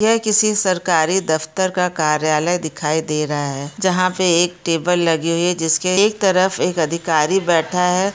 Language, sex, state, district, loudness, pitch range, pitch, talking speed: Hindi, female, Bihar, Samastipur, -17 LUFS, 160-185 Hz, 175 Hz, 185 wpm